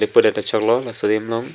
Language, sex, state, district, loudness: Karbi, male, Assam, Karbi Anglong, -19 LUFS